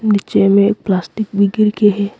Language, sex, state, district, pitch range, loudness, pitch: Hindi, male, Arunachal Pradesh, Longding, 200-215 Hz, -14 LUFS, 200 Hz